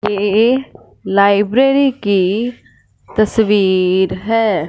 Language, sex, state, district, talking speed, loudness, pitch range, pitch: Hindi, female, Punjab, Fazilka, 65 wpm, -14 LUFS, 195-225 Hz, 205 Hz